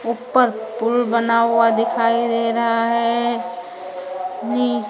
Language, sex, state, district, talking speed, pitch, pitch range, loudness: Hindi, female, Maharashtra, Mumbai Suburban, 110 wpm, 230 Hz, 185-235 Hz, -19 LUFS